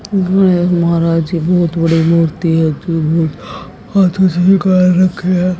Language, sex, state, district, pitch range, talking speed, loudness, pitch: Hindi, female, Haryana, Jhajjar, 165-185 Hz, 150 wpm, -13 LUFS, 175 Hz